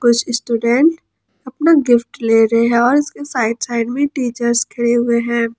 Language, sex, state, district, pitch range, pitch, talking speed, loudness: Hindi, female, Jharkhand, Palamu, 235-260 Hz, 235 Hz, 170 wpm, -15 LUFS